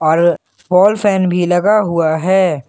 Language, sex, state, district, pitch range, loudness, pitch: Hindi, male, Jharkhand, Ranchi, 170-190 Hz, -13 LUFS, 180 Hz